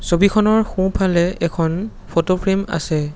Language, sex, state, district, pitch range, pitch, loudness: Assamese, male, Assam, Sonitpur, 165-200 Hz, 185 Hz, -18 LUFS